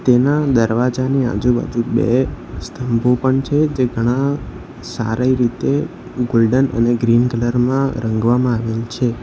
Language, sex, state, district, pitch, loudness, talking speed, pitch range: Gujarati, male, Gujarat, Valsad, 125 Hz, -17 LUFS, 125 wpm, 120-130 Hz